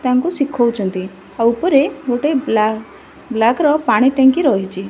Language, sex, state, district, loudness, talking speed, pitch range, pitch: Odia, female, Odisha, Malkangiri, -16 LUFS, 135 wpm, 215-280 Hz, 245 Hz